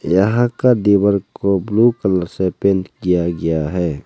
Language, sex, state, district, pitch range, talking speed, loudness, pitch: Hindi, male, Arunachal Pradesh, Lower Dibang Valley, 90-105 Hz, 165 wpm, -17 LUFS, 95 Hz